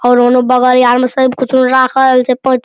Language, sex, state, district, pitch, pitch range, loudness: Maithili, male, Bihar, Araria, 255 Hz, 250-260 Hz, -10 LUFS